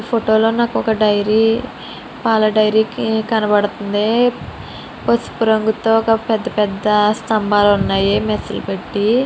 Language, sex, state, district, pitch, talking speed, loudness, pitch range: Telugu, female, Andhra Pradesh, Srikakulam, 220 Hz, 125 wpm, -16 LUFS, 210-225 Hz